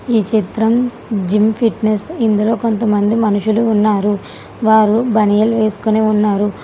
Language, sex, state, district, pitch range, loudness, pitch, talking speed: Telugu, female, Telangana, Hyderabad, 210-225 Hz, -15 LUFS, 215 Hz, 110 wpm